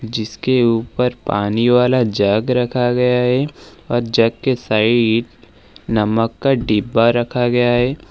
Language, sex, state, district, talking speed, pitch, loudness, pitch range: Hindi, male, Uttar Pradesh, Lalitpur, 135 wpm, 120 Hz, -16 LUFS, 115-125 Hz